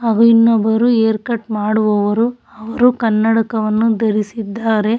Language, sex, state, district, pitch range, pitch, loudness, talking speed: Kannada, female, Karnataka, Shimoga, 215-230 Hz, 225 Hz, -15 LUFS, 95 wpm